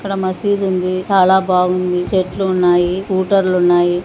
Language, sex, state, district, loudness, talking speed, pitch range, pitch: Telugu, female, Andhra Pradesh, Anantapur, -15 LUFS, 105 wpm, 180-190 Hz, 185 Hz